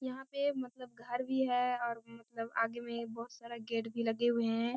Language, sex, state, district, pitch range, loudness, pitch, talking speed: Hindi, female, Bihar, Kishanganj, 230-250 Hz, -36 LUFS, 235 Hz, 215 wpm